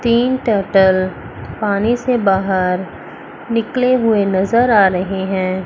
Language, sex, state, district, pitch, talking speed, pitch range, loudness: Hindi, female, Chandigarh, Chandigarh, 200 Hz, 115 wpm, 190-235 Hz, -15 LUFS